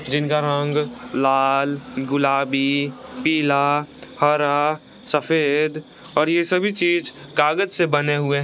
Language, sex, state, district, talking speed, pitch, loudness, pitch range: Hindi, male, Jharkhand, Garhwa, 115 wpm, 145 Hz, -20 LUFS, 140-155 Hz